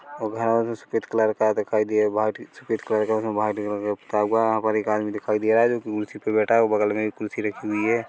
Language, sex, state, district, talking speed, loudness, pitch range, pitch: Hindi, male, Chhattisgarh, Korba, 260 wpm, -23 LUFS, 105-110 Hz, 110 Hz